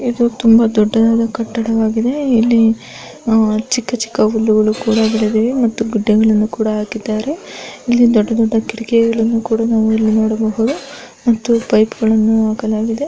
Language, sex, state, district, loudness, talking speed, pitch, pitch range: Kannada, female, Karnataka, Bellary, -14 LUFS, 110 wpm, 225 Hz, 220-230 Hz